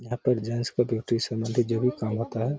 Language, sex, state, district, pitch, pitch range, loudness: Hindi, male, Bihar, Gaya, 115 Hz, 115-120 Hz, -27 LUFS